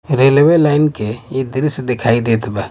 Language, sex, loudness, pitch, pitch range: Bhojpuri, male, -14 LUFS, 130 Hz, 115-145 Hz